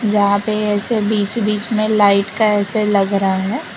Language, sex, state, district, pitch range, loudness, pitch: Hindi, female, Gujarat, Valsad, 200-215 Hz, -16 LUFS, 210 Hz